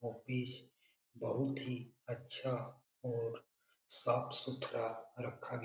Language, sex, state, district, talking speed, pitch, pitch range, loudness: Hindi, male, Bihar, Jamui, 105 wpm, 125 Hz, 120-130 Hz, -41 LUFS